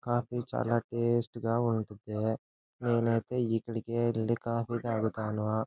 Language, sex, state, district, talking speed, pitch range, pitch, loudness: Telugu, male, Andhra Pradesh, Anantapur, 115 wpm, 110-120 Hz, 115 Hz, -32 LUFS